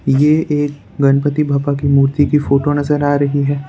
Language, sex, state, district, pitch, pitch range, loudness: Hindi, male, Gujarat, Valsad, 145 Hz, 140-145 Hz, -15 LUFS